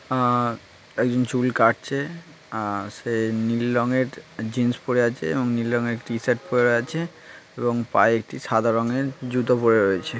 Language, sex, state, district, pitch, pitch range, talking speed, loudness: Bengali, male, West Bengal, Kolkata, 120 Hz, 115-125 Hz, 155 wpm, -23 LUFS